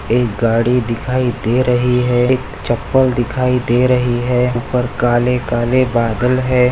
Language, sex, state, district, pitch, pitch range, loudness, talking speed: Hindi, male, Maharashtra, Nagpur, 125 Hz, 120-125 Hz, -15 LUFS, 145 wpm